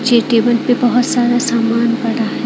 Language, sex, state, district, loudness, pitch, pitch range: Hindi, female, Odisha, Khordha, -14 LUFS, 240 Hz, 235-245 Hz